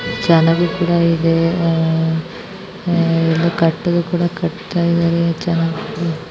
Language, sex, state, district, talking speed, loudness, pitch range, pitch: Kannada, female, Karnataka, Bijapur, 55 wpm, -16 LUFS, 165-175 Hz, 170 Hz